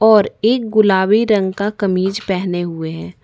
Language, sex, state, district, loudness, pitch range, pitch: Hindi, female, Jharkhand, Ranchi, -16 LUFS, 185-215 Hz, 195 Hz